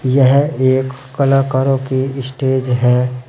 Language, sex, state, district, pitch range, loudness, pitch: Hindi, male, Uttar Pradesh, Saharanpur, 130-135 Hz, -15 LUFS, 130 Hz